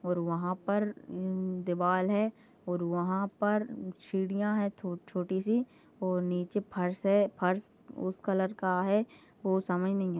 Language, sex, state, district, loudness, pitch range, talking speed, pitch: Hindi, female, Goa, North and South Goa, -32 LUFS, 180-205 Hz, 140 wpm, 190 Hz